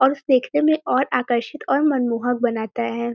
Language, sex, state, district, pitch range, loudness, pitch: Hindi, female, Uttar Pradesh, Varanasi, 235-280 Hz, -20 LUFS, 250 Hz